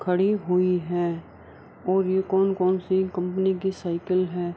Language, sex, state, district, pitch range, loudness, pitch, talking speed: Hindi, female, Bihar, Kishanganj, 175-190 Hz, -24 LUFS, 185 Hz, 145 wpm